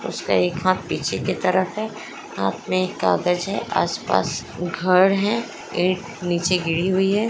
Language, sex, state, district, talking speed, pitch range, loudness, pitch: Hindi, female, Chhattisgarh, Raigarh, 165 wpm, 175-195 Hz, -22 LUFS, 185 Hz